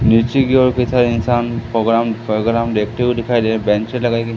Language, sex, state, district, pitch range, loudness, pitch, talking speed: Hindi, male, Madhya Pradesh, Katni, 115-125 Hz, -16 LUFS, 115 Hz, 220 wpm